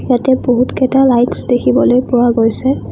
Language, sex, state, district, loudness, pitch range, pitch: Assamese, female, Assam, Kamrup Metropolitan, -12 LUFS, 245-260 Hz, 250 Hz